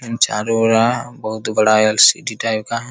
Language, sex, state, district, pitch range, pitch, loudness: Hindi, male, Bihar, Jamui, 110-115 Hz, 115 Hz, -16 LUFS